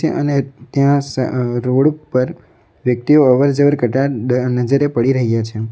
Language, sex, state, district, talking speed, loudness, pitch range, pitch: Gujarati, male, Gujarat, Valsad, 135 wpm, -16 LUFS, 125-140 Hz, 130 Hz